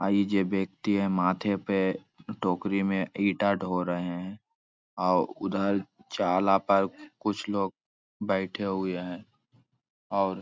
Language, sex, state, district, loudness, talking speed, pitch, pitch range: Hindi, male, Bihar, Araria, -28 LUFS, 140 wpm, 95 Hz, 95-100 Hz